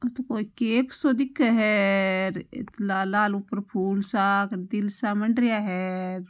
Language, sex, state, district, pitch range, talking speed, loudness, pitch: Marwari, female, Rajasthan, Nagaur, 195-235 Hz, 160 wpm, -25 LUFS, 210 Hz